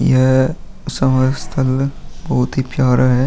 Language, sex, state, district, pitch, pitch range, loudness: Hindi, male, Uttar Pradesh, Muzaffarnagar, 130 Hz, 130-135 Hz, -16 LUFS